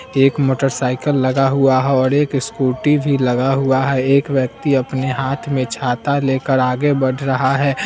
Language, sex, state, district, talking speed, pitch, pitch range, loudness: Hindi, male, Bihar, Vaishali, 185 wpm, 135 Hz, 130-140 Hz, -16 LUFS